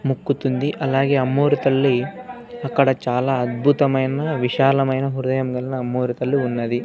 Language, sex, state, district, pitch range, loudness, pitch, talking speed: Telugu, male, Andhra Pradesh, Sri Satya Sai, 125-140 Hz, -20 LUFS, 135 Hz, 115 wpm